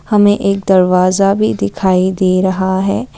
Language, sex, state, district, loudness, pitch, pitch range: Hindi, female, Assam, Kamrup Metropolitan, -13 LUFS, 190 Hz, 185-195 Hz